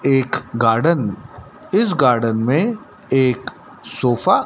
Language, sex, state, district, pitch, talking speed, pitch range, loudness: Hindi, male, Madhya Pradesh, Dhar, 130 Hz, 110 wpm, 115-160 Hz, -18 LUFS